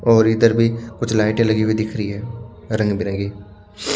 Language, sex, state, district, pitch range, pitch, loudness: Hindi, male, Haryana, Charkhi Dadri, 105-115 Hz, 110 Hz, -19 LUFS